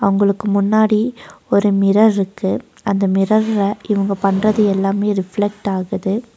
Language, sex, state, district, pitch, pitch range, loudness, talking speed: Tamil, female, Tamil Nadu, Nilgiris, 200 Hz, 195-215 Hz, -17 LUFS, 115 wpm